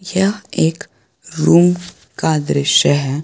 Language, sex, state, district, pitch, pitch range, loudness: Hindi, male, Jharkhand, Garhwa, 160 Hz, 140-180 Hz, -15 LUFS